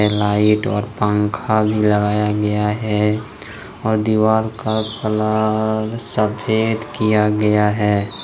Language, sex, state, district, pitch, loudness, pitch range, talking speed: Hindi, male, Jharkhand, Ranchi, 105 Hz, -18 LUFS, 105-110 Hz, 110 wpm